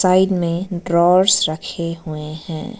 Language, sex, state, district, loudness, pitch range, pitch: Hindi, female, Arunachal Pradesh, Lower Dibang Valley, -18 LUFS, 160-185 Hz, 175 Hz